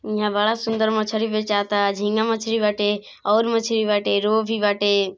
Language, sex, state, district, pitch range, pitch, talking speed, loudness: Bhojpuri, female, Bihar, East Champaran, 205-220 Hz, 215 Hz, 175 wpm, -21 LUFS